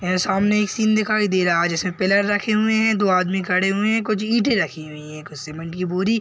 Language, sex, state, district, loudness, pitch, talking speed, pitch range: Hindi, male, Chhattisgarh, Bilaspur, -19 LUFS, 195 Hz, 270 wpm, 180-215 Hz